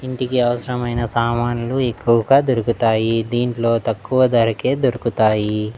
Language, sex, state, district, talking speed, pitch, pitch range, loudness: Telugu, male, Andhra Pradesh, Annamaya, 95 wpm, 120 Hz, 115-125 Hz, -18 LUFS